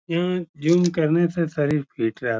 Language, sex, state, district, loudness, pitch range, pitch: Hindi, male, Uttar Pradesh, Etah, -22 LUFS, 145-175 Hz, 165 Hz